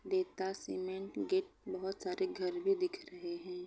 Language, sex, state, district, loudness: Hindi, female, Bihar, Gopalganj, -38 LUFS